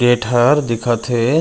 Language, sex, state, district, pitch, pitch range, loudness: Chhattisgarhi, male, Chhattisgarh, Raigarh, 120 Hz, 120-125 Hz, -16 LUFS